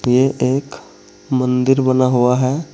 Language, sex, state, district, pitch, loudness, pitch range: Hindi, male, Uttar Pradesh, Saharanpur, 130 Hz, -16 LUFS, 125-135 Hz